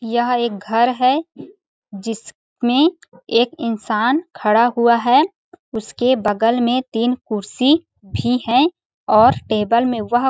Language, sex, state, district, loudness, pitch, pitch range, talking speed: Hindi, female, Chhattisgarh, Balrampur, -17 LUFS, 240 Hz, 225-265 Hz, 120 wpm